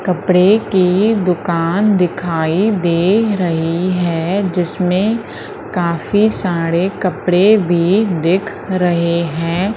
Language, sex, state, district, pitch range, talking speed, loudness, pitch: Hindi, female, Madhya Pradesh, Umaria, 170-200 Hz, 90 wpm, -15 LUFS, 180 Hz